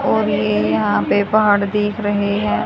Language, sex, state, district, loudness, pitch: Hindi, female, Haryana, Jhajjar, -17 LUFS, 200 Hz